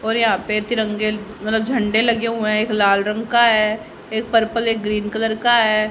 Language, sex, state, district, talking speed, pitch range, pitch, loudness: Hindi, female, Haryana, Jhajjar, 215 wpm, 215-230 Hz, 220 Hz, -18 LUFS